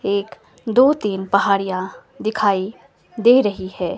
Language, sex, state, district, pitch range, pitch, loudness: Hindi, female, Himachal Pradesh, Shimla, 185-220 Hz, 200 Hz, -18 LUFS